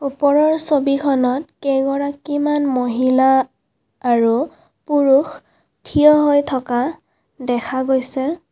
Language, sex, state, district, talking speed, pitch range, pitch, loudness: Assamese, female, Assam, Kamrup Metropolitan, 75 wpm, 260-290 Hz, 275 Hz, -17 LUFS